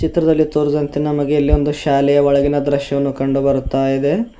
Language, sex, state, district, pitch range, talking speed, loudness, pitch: Kannada, male, Karnataka, Bidar, 140-150 Hz, 125 wpm, -16 LUFS, 145 Hz